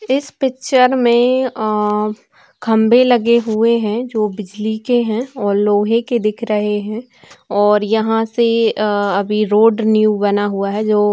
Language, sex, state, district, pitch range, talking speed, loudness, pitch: Hindi, female, Chhattisgarh, Sukma, 210-235 Hz, 155 wpm, -15 LUFS, 220 Hz